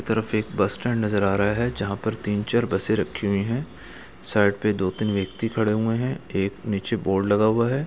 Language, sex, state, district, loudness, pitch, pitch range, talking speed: Hindi, male, Bihar, Gaya, -24 LUFS, 105 Hz, 100-115 Hz, 230 wpm